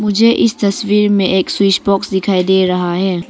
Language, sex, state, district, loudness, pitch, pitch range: Hindi, female, Arunachal Pradesh, Longding, -13 LUFS, 195 Hz, 190-205 Hz